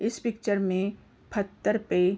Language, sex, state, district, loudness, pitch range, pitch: Hindi, female, Uttar Pradesh, Varanasi, -29 LUFS, 195-220 Hz, 205 Hz